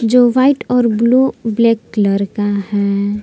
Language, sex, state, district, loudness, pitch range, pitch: Hindi, female, Jharkhand, Palamu, -14 LUFS, 205-245 Hz, 225 Hz